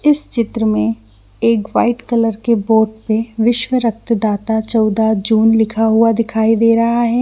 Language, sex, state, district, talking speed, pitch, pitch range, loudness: Hindi, female, Chhattisgarh, Bilaspur, 175 wpm, 225 Hz, 220-230 Hz, -15 LUFS